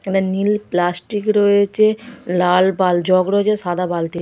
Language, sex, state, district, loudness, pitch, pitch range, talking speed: Bengali, female, West Bengal, Dakshin Dinajpur, -17 LUFS, 190 Hz, 180-210 Hz, 140 wpm